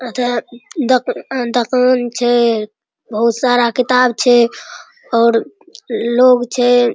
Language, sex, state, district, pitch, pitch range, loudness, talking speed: Maithili, female, Bihar, Araria, 245 Hz, 235-250 Hz, -14 LUFS, 85 wpm